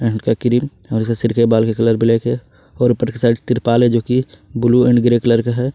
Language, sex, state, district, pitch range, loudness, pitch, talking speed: Hindi, male, Jharkhand, Ranchi, 115-120 Hz, -16 LUFS, 120 Hz, 210 wpm